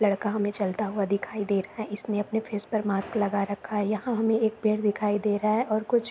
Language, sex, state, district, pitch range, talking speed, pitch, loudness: Hindi, female, Uttar Pradesh, Deoria, 205-220 Hz, 275 wpm, 210 Hz, -27 LUFS